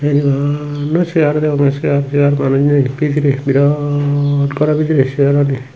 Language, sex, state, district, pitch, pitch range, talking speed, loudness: Chakma, male, Tripura, Unakoti, 145 Hz, 140-150 Hz, 125 wpm, -14 LUFS